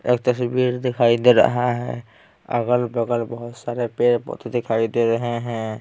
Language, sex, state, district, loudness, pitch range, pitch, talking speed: Hindi, male, Bihar, Patna, -21 LUFS, 115-125 Hz, 120 Hz, 145 wpm